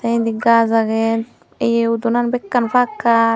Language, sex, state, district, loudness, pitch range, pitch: Chakma, female, Tripura, Unakoti, -17 LUFS, 225-235 Hz, 230 Hz